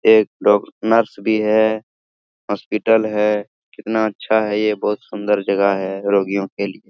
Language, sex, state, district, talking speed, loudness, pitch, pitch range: Hindi, male, Jharkhand, Sahebganj, 155 wpm, -18 LUFS, 105 Hz, 100-110 Hz